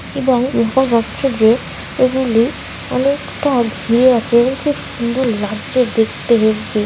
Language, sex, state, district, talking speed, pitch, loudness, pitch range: Bengali, male, West Bengal, Kolkata, 70 wpm, 240 Hz, -15 LUFS, 230-260 Hz